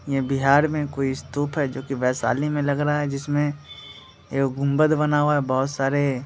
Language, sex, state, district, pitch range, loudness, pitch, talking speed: Hindi, male, Bihar, Muzaffarpur, 135-145 Hz, -23 LUFS, 140 Hz, 200 wpm